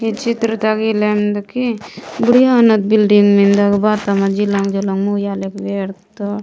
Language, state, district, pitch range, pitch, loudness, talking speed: Gondi, Chhattisgarh, Sukma, 200-220 Hz, 205 Hz, -15 LUFS, 130 wpm